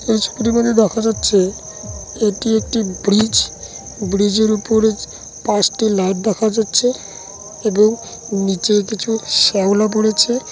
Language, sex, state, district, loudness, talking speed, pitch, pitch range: Bengali, male, West Bengal, Dakshin Dinajpur, -16 LUFS, 110 wpm, 215 Hz, 200-225 Hz